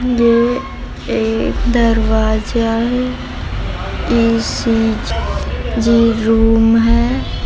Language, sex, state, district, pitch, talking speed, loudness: Hindi, female, Bihar, Jamui, 225 Hz, 55 wpm, -15 LUFS